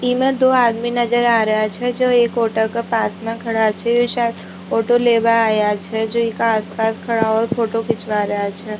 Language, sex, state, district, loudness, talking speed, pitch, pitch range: Rajasthani, female, Rajasthan, Nagaur, -17 LUFS, 210 wpm, 230 Hz, 220-240 Hz